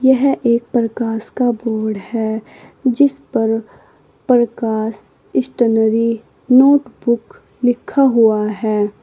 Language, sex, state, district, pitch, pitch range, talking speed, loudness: Hindi, female, Uttar Pradesh, Saharanpur, 230 Hz, 220-250 Hz, 95 wpm, -16 LUFS